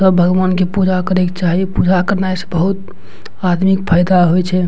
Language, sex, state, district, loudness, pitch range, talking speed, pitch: Maithili, male, Bihar, Madhepura, -14 LUFS, 180-190 Hz, 205 wpm, 185 Hz